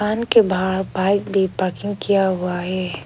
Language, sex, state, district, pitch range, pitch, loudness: Hindi, female, Arunachal Pradesh, Lower Dibang Valley, 185-205 Hz, 190 Hz, -19 LUFS